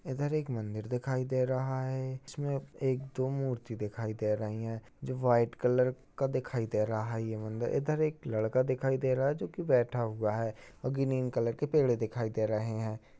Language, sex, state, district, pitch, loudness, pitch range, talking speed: Hindi, male, Bihar, Bhagalpur, 125 Hz, -33 LUFS, 110-130 Hz, 200 wpm